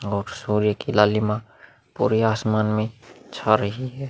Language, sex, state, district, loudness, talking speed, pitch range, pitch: Hindi, male, Uttar Pradesh, Muzaffarnagar, -22 LUFS, 145 wpm, 105-115 Hz, 110 Hz